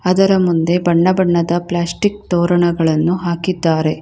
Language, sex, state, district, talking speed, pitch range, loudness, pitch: Kannada, female, Karnataka, Bangalore, 105 wpm, 170-185 Hz, -15 LUFS, 175 Hz